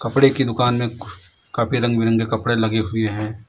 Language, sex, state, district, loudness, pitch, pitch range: Hindi, male, Uttar Pradesh, Lalitpur, -20 LUFS, 115 Hz, 110-120 Hz